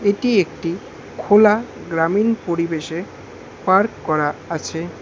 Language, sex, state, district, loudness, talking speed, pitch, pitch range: Bengali, male, West Bengal, Alipurduar, -19 LUFS, 95 wpm, 185 Hz, 165-210 Hz